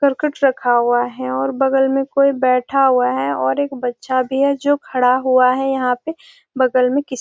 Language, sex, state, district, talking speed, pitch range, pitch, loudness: Hindi, female, Bihar, Gopalganj, 225 wpm, 250-275 Hz, 260 Hz, -17 LUFS